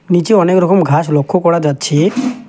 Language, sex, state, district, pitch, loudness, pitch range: Bengali, male, West Bengal, Alipurduar, 175 Hz, -12 LUFS, 150-190 Hz